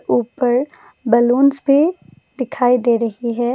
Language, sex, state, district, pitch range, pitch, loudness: Hindi, female, Assam, Kamrup Metropolitan, 240-275 Hz, 245 Hz, -16 LUFS